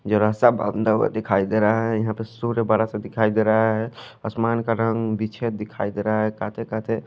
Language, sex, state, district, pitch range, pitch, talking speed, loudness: Hindi, male, Odisha, Khordha, 110-115 Hz, 110 Hz, 205 wpm, -22 LUFS